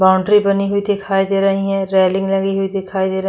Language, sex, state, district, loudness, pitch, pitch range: Hindi, female, Chhattisgarh, Korba, -16 LUFS, 195 Hz, 190-195 Hz